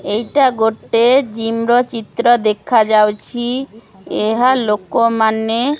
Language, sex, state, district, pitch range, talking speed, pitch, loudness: Odia, female, Odisha, Khordha, 220-245 Hz, 85 wpm, 230 Hz, -15 LUFS